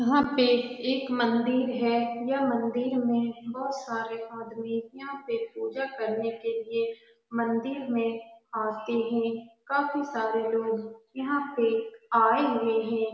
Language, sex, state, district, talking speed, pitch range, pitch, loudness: Hindi, female, Bihar, Saran, 125 wpm, 230-270 Hz, 235 Hz, -28 LUFS